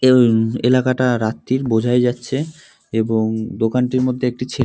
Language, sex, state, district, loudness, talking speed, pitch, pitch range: Bengali, male, West Bengal, North 24 Parganas, -18 LUFS, 140 wpm, 125 Hz, 115-130 Hz